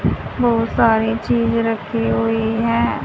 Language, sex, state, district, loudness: Hindi, female, Haryana, Charkhi Dadri, -18 LUFS